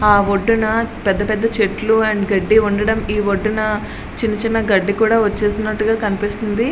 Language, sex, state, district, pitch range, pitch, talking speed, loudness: Telugu, female, Andhra Pradesh, Srikakulam, 205-220 Hz, 215 Hz, 135 wpm, -17 LUFS